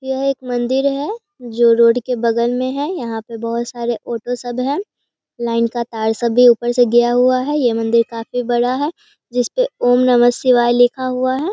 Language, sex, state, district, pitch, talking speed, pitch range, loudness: Hindi, female, Bihar, Begusarai, 245 Hz, 210 wpm, 235-260 Hz, -16 LUFS